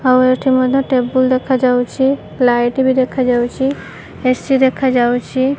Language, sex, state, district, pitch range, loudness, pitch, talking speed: Odia, female, Odisha, Malkangiri, 250-265 Hz, -15 LUFS, 255 Hz, 105 wpm